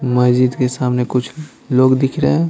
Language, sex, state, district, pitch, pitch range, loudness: Hindi, male, Bihar, Patna, 125 Hz, 125-140 Hz, -16 LUFS